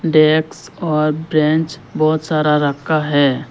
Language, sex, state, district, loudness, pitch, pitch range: Hindi, male, Arunachal Pradesh, Lower Dibang Valley, -16 LUFS, 155 Hz, 150-155 Hz